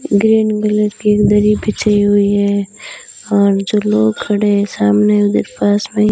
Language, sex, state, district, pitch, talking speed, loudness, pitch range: Hindi, female, Rajasthan, Bikaner, 205 Hz, 175 wpm, -13 LUFS, 200-210 Hz